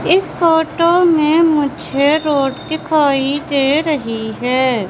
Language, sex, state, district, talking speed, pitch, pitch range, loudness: Hindi, female, Madhya Pradesh, Katni, 110 wpm, 295 Hz, 270-320 Hz, -15 LUFS